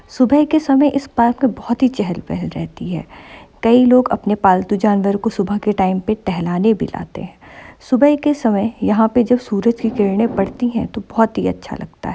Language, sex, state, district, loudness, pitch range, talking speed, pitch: Hindi, female, Uttar Pradesh, Jyotiba Phule Nagar, -16 LUFS, 205-250 Hz, 210 wpm, 225 Hz